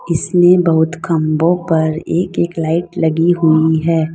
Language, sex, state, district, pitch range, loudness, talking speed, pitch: Hindi, female, Uttar Pradesh, Saharanpur, 160-175 Hz, -14 LUFS, 145 wpm, 165 Hz